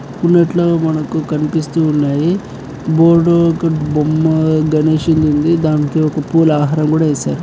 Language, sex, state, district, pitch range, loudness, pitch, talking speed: Telugu, male, Andhra Pradesh, Krishna, 150-165 Hz, -14 LUFS, 155 Hz, 115 wpm